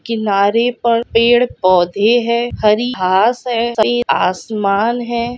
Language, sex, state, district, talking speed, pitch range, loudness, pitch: Hindi, female, Andhra Pradesh, Krishna, 110 wpm, 205-240 Hz, -14 LUFS, 230 Hz